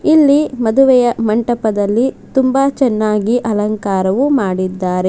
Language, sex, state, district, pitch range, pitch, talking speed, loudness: Kannada, female, Karnataka, Bidar, 210-265 Hz, 230 Hz, 80 wpm, -14 LUFS